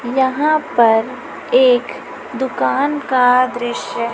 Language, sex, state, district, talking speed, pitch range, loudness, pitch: Hindi, female, Chhattisgarh, Raipur, 85 wpm, 245-295 Hz, -15 LUFS, 260 Hz